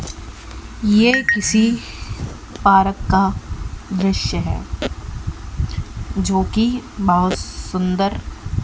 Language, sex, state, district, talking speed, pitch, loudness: Hindi, female, Haryana, Jhajjar, 70 wpm, 190 Hz, -19 LUFS